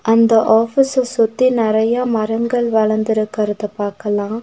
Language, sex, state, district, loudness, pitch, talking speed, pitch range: Tamil, female, Tamil Nadu, Nilgiris, -16 LUFS, 225 Hz, 95 wpm, 215-235 Hz